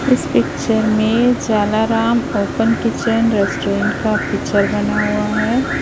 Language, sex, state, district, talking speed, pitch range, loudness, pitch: Hindi, female, Chhattisgarh, Raipur, 125 wpm, 200-230 Hz, -16 LUFS, 220 Hz